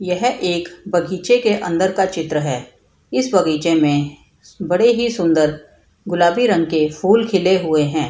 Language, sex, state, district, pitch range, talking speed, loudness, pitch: Hindi, female, Bihar, Madhepura, 155-190 Hz, 170 wpm, -17 LUFS, 175 Hz